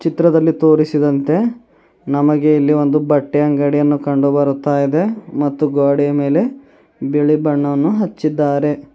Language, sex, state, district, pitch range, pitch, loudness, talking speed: Kannada, male, Karnataka, Bidar, 145-160 Hz, 150 Hz, -15 LUFS, 105 wpm